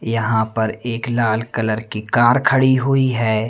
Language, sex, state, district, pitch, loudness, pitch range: Hindi, male, Madhya Pradesh, Umaria, 115 Hz, -18 LUFS, 110-125 Hz